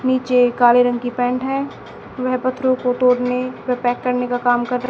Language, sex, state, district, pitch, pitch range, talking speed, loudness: Hindi, female, Haryana, Charkhi Dadri, 250 Hz, 245-255 Hz, 210 wpm, -18 LUFS